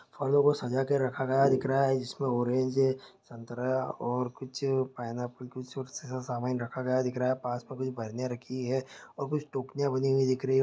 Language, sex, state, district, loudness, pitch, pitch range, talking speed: Hindi, male, Bihar, Saharsa, -31 LUFS, 130 Hz, 125-135 Hz, 205 wpm